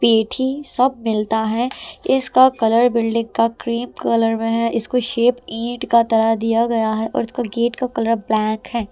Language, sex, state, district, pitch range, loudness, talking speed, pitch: Hindi, female, Delhi, New Delhi, 225-245 Hz, -18 LUFS, 180 wpm, 230 Hz